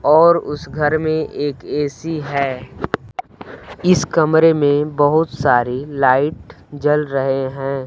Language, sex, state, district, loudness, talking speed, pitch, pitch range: Hindi, male, Bihar, Kaimur, -17 LUFS, 120 wpm, 145 Hz, 135-155 Hz